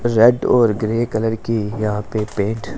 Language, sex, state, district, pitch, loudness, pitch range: Hindi, male, Punjab, Pathankot, 110 Hz, -18 LUFS, 105-115 Hz